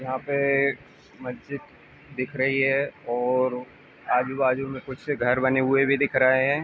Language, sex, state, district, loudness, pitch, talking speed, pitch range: Hindi, male, Uttar Pradesh, Ghazipur, -24 LUFS, 130 Hz, 155 wpm, 130-140 Hz